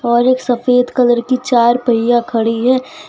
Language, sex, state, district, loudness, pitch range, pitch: Hindi, female, Gujarat, Valsad, -14 LUFS, 235-255 Hz, 245 Hz